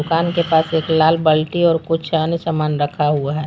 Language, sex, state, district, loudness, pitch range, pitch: Hindi, female, Jharkhand, Palamu, -17 LUFS, 155-165 Hz, 160 Hz